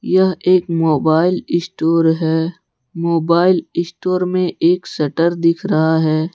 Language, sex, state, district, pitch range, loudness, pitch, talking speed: Hindi, male, Jharkhand, Deoghar, 160-180 Hz, -16 LUFS, 170 Hz, 125 wpm